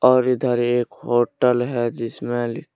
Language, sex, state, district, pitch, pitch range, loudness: Hindi, male, Jharkhand, Deoghar, 120 Hz, 120-125 Hz, -21 LUFS